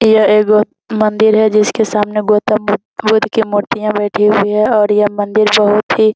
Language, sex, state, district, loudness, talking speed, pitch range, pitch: Hindi, female, Bihar, Jamui, -12 LUFS, 195 wpm, 210-215 Hz, 210 Hz